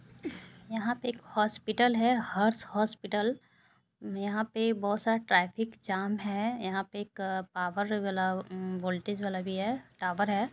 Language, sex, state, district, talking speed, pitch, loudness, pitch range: Hindi, female, Bihar, Purnia, 150 wpm, 205 Hz, -31 LUFS, 190-225 Hz